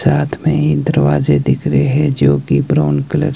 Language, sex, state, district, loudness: Hindi, male, Himachal Pradesh, Shimla, -14 LUFS